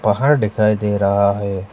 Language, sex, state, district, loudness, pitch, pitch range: Hindi, male, Arunachal Pradesh, Lower Dibang Valley, -17 LUFS, 105 Hz, 100-105 Hz